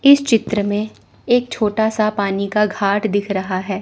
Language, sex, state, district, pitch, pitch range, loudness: Hindi, female, Chandigarh, Chandigarh, 210 Hz, 200-220 Hz, -18 LUFS